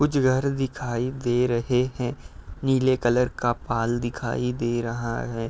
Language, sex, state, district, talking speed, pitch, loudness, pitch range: Hindi, male, Uttar Pradesh, Etah, 155 wpm, 120 Hz, -25 LUFS, 120-130 Hz